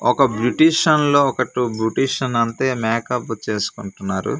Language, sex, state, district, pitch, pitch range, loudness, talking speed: Telugu, male, Andhra Pradesh, Manyam, 125 Hz, 110-135 Hz, -19 LUFS, 125 wpm